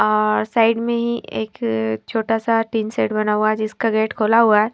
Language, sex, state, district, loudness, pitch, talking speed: Hindi, female, Himachal Pradesh, Shimla, -19 LUFS, 215 Hz, 215 wpm